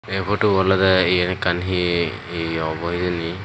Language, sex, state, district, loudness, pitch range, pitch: Chakma, male, Tripura, Dhalai, -20 LUFS, 85-95 Hz, 90 Hz